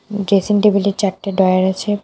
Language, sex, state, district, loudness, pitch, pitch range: Bengali, female, West Bengal, Cooch Behar, -16 LUFS, 200 Hz, 190-205 Hz